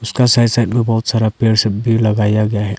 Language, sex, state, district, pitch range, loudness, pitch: Hindi, male, Arunachal Pradesh, Lower Dibang Valley, 105-120 Hz, -14 LUFS, 110 Hz